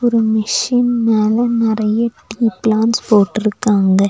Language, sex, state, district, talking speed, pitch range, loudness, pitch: Tamil, female, Tamil Nadu, Nilgiris, 100 wpm, 215-230 Hz, -15 LUFS, 220 Hz